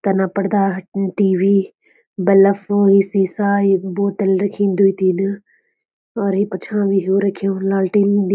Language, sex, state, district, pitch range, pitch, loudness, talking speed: Garhwali, female, Uttarakhand, Uttarkashi, 195-200 Hz, 195 Hz, -17 LUFS, 135 wpm